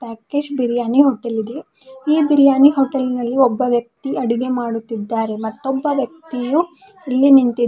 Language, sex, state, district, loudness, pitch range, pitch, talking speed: Kannada, female, Karnataka, Bidar, -17 LUFS, 235-280 Hz, 260 Hz, 135 wpm